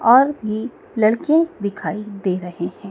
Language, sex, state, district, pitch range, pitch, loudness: Hindi, female, Madhya Pradesh, Dhar, 195-240 Hz, 215 Hz, -20 LUFS